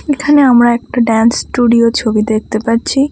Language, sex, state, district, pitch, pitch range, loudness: Bengali, female, West Bengal, Alipurduar, 235 Hz, 225-270 Hz, -11 LUFS